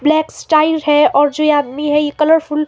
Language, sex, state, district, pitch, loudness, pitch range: Hindi, female, Himachal Pradesh, Shimla, 300 Hz, -14 LUFS, 295-310 Hz